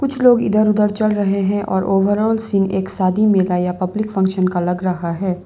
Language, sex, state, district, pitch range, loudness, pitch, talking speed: Hindi, female, Assam, Sonitpur, 185-215 Hz, -17 LUFS, 195 Hz, 210 wpm